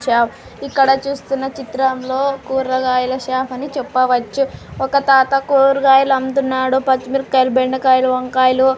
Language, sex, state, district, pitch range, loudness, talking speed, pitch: Telugu, female, Andhra Pradesh, Sri Satya Sai, 255-275 Hz, -16 LUFS, 95 wpm, 265 Hz